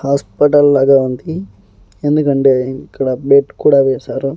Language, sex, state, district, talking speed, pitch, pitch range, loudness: Telugu, male, Andhra Pradesh, Annamaya, 110 wpm, 135 Hz, 130-140 Hz, -13 LUFS